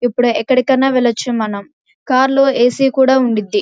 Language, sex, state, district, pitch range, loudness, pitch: Telugu, female, Andhra Pradesh, Krishna, 235-270 Hz, -14 LUFS, 255 Hz